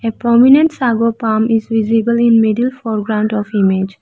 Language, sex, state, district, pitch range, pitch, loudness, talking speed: English, female, Arunachal Pradesh, Lower Dibang Valley, 215-235 Hz, 225 Hz, -13 LUFS, 150 wpm